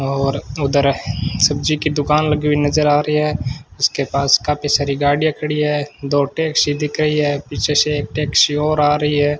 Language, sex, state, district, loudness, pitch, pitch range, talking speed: Hindi, male, Rajasthan, Bikaner, -17 LUFS, 145 Hz, 140-150 Hz, 200 wpm